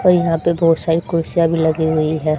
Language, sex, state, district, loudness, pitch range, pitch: Hindi, female, Haryana, Charkhi Dadri, -16 LUFS, 160-170 Hz, 165 Hz